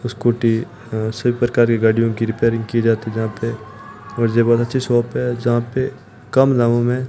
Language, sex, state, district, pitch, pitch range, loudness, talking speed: Hindi, male, Rajasthan, Bikaner, 115 Hz, 115-120 Hz, -18 LUFS, 205 wpm